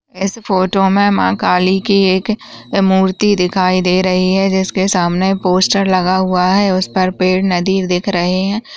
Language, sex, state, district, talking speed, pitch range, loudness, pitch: Hindi, female, Uttar Pradesh, Varanasi, 170 wpm, 185-195 Hz, -14 LUFS, 190 Hz